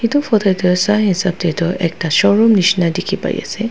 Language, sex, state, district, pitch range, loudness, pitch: Nagamese, female, Nagaland, Dimapur, 175-210 Hz, -15 LUFS, 190 Hz